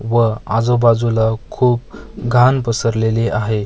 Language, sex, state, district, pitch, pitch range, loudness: Marathi, male, Maharashtra, Mumbai Suburban, 115 Hz, 110-120 Hz, -16 LUFS